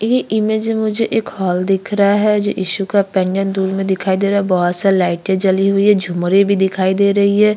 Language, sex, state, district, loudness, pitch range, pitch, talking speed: Hindi, female, Chhattisgarh, Kabirdham, -15 LUFS, 190-205 Hz, 195 Hz, 245 wpm